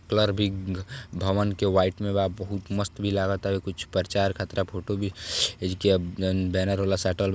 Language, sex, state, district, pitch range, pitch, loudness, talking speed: Bhojpuri, male, Uttar Pradesh, Deoria, 95-100 Hz, 95 Hz, -27 LUFS, 180 wpm